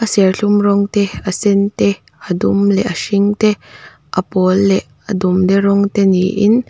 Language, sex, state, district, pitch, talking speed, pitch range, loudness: Mizo, female, Mizoram, Aizawl, 200 Hz, 180 wpm, 190-205 Hz, -14 LUFS